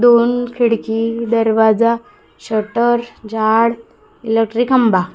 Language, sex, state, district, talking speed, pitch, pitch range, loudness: Marathi, female, Maharashtra, Gondia, 80 wpm, 230 Hz, 220-240 Hz, -15 LUFS